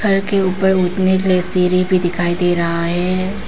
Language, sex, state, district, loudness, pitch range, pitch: Hindi, female, Arunachal Pradesh, Papum Pare, -15 LUFS, 175-190 Hz, 185 Hz